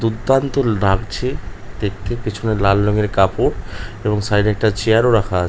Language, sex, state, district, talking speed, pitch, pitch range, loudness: Bengali, male, West Bengal, North 24 Parganas, 155 wpm, 105 Hz, 100-115 Hz, -18 LUFS